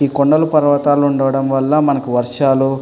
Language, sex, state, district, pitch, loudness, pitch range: Telugu, male, Andhra Pradesh, Anantapur, 140 Hz, -14 LUFS, 135-145 Hz